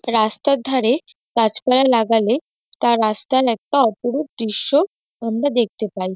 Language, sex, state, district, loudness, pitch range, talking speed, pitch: Bengali, female, West Bengal, North 24 Parganas, -18 LUFS, 220-265 Hz, 115 wpm, 235 Hz